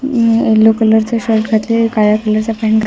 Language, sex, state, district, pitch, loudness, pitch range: Marathi, female, Maharashtra, Washim, 220 Hz, -12 LUFS, 220-230 Hz